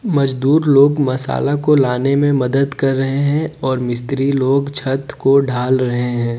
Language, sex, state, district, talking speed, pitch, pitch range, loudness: Hindi, male, Jharkhand, Deoghar, 170 wpm, 135 Hz, 130-140 Hz, -16 LUFS